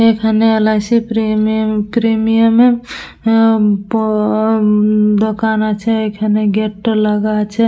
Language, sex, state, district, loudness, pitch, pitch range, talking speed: Bengali, female, West Bengal, Dakshin Dinajpur, -13 LUFS, 220 Hz, 215-225 Hz, 115 wpm